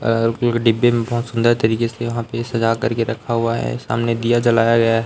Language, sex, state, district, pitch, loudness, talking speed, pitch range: Hindi, male, Chhattisgarh, Raipur, 115 Hz, -18 LUFS, 225 wpm, 115-120 Hz